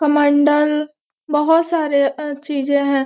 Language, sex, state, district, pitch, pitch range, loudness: Hindi, female, Bihar, Gopalganj, 295 Hz, 285-300 Hz, -17 LUFS